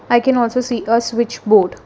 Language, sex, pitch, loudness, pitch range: English, female, 235 Hz, -16 LUFS, 230-240 Hz